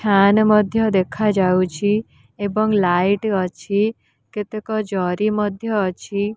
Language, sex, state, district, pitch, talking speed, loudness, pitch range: Odia, female, Odisha, Nuapada, 205 Hz, 105 wpm, -19 LUFS, 185-215 Hz